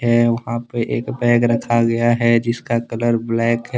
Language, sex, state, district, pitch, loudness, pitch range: Hindi, male, Jharkhand, Deoghar, 115 Hz, -18 LUFS, 115-120 Hz